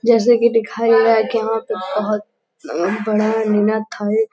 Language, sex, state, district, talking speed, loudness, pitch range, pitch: Hindi, female, Uttar Pradesh, Gorakhpur, 165 wpm, -17 LUFS, 210-225 Hz, 220 Hz